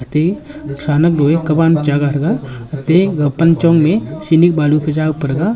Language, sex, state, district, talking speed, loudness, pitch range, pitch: Wancho, male, Arunachal Pradesh, Longding, 160 wpm, -14 LUFS, 145-165 Hz, 155 Hz